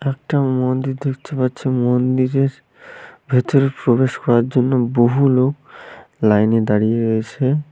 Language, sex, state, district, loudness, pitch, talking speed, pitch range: Bengali, male, West Bengal, Malda, -17 LUFS, 130 Hz, 115 wpm, 120-135 Hz